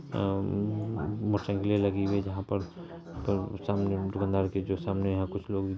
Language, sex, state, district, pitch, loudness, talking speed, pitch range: Hindi, male, Bihar, Purnia, 100 Hz, -31 LUFS, 165 wpm, 95-100 Hz